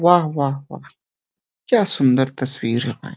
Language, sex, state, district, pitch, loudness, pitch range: Hindi, male, Uttar Pradesh, Deoria, 135 Hz, -19 LUFS, 130-170 Hz